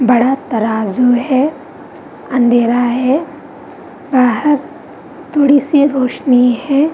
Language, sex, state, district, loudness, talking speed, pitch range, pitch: Hindi, female, Bihar, Vaishali, -13 LUFS, 85 wpm, 245-290 Hz, 265 Hz